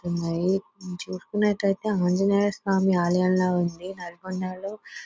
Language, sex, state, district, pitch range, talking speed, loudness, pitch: Telugu, female, Telangana, Nalgonda, 180-195 Hz, 105 wpm, -25 LUFS, 185 Hz